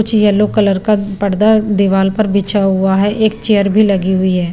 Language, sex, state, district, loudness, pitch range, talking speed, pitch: Hindi, female, Punjab, Pathankot, -13 LUFS, 195-215 Hz, 210 wpm, 200 Hz